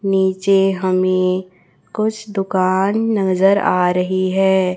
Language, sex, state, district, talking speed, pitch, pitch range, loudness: Hindi, male, Chhattisgarh, Raipur, 100 wpm, 190 Hz, 185-195 Hz, -17 LUFS